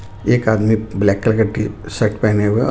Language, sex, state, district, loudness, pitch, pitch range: Hindi, male, Jharkhand, Ranchi, -17 LUFS, 105 Hz, 105-110 Hz